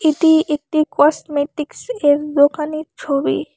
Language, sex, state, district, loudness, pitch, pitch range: Bengali, female, West Bengal, Alipurduar, -17 LUFS, 300 Hz, 290-310 Hz